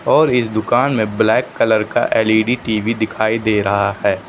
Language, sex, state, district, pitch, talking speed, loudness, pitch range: Hindi, male, Uttar Pradesh, Lucknow, 110 Hz, 180 wpm, -16 LUFS, 110-115 Hz